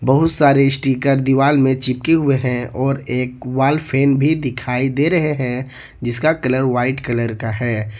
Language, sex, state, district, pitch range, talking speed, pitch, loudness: Hindi, male, Jharkhand, Ranchi, 125-140 Hz, 175 wpm, 130 Hz, -17 LUFS